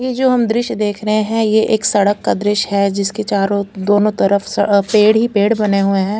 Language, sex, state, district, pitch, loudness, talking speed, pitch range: Hindi, female, Chandigarh, Chandigarh, 210 Hz, -15 LUFS, 230 wpm, 200-220 Hz